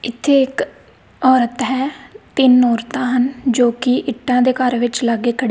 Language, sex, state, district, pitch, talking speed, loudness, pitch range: Punjabi, female, Punjab, Kapurthala, 250 Hz, 155 wpm, -16 LUFS, 245-260 Hz